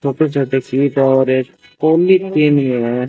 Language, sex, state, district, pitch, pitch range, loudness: Hindi, male, Rajasthan, Bikaner, 140 Hz, 130-155 Hz, -14 LUFS